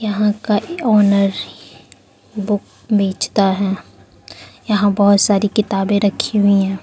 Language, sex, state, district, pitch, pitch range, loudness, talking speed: Hindi, female, Arunachal Pradesh, Lower Dibang Valley, 200 Hz, 195-210 Hz, -16 LUFS, 125 wpm